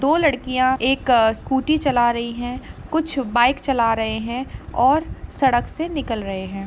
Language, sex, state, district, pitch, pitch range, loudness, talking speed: Hindi, female, Jharkhand, Jamtara, 255 Hz, 235-275 Hz, -20 LUFS, 170 wpm